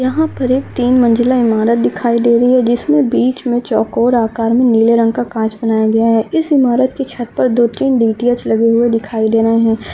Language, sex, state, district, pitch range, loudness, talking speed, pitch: Hindi, female, Andhra Pradesh, Chittoor, 225-250 Hz, -13 LUFS, 225 wpm, 235 Hz